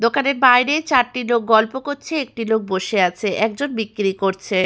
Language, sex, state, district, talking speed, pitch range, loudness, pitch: Bengali, female, West Bengal, Malda, 165 wpm, 205-265 Hz, -18 LUFS, 230 Hz